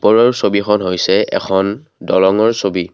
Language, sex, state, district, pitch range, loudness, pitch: Assamese, male, Assam, Kamrup Metropolitan, 95-110 Hz, -14 LUFS, 100 Hz